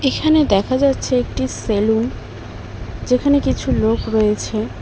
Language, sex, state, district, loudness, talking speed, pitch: Bengali, female, West Bengal, Cooch Behar, -17 LUFS, 110 wpm, 130 Hz